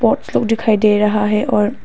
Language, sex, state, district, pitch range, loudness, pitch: Hindi, female, Arunachal Pradesh, Papum Pare, 210-220 Hz, -15 LUFS, 210 Hz